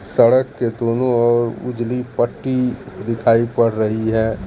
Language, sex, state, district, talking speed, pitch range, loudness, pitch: Hindi, male, Bihar, Katihar, 135 wpm, 115-125 Hz, -18 LUFS, 120 Hz